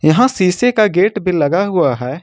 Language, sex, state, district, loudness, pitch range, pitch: Hindi, male, Jharkhand, Ranchi, -14 LUFS, 170-215 Hz, 185 Hz